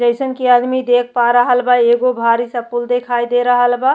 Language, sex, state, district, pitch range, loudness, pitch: Bhojpuri, female, Uttar Pradesh, Ghazipur, 240-250 Hz, -14 LUFS, 245 Hz